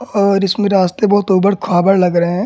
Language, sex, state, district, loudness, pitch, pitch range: Hindi, male, Jharkhand, Sahebganj, -13 LUFS, 195 Hz, 185-205 Hz